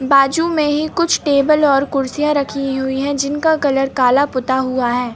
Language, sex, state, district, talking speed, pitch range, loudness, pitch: Hindi, male, Madhya Pradesh, Bhopal, 185 wpm, 265-295 Hz, -16 LUFS, 280 Hz